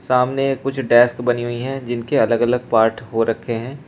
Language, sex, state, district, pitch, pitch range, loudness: Hindi, male, Uttar Pradesh, Shamli, 120 Hz, 115-135 Hz, -18 LUFS